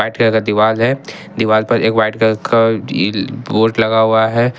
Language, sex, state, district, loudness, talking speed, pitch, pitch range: Hindi, male, Jharkhand, Ranchi, -14 LUFS, 195 wpm, 110 Hz, 110-115 Hz